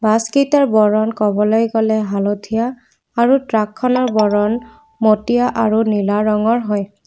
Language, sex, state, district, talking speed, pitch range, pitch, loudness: Assamese, female, Assam, Kamrup Metropolitan, 110 wpm, 210-240 Hz, 220 Hz, -16 LUFS